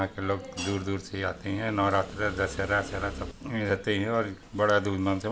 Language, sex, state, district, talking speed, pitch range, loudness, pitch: Hindi, male, Chhattisgarh, Bastar, 205 wpm, 95-105 Hz, -29 LUFS, 100 Hz